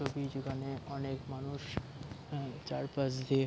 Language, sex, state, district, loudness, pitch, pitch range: Bengali, male, West Bengal, Jhargram, -39 LUFS, 135 Hz, 135-140 Hz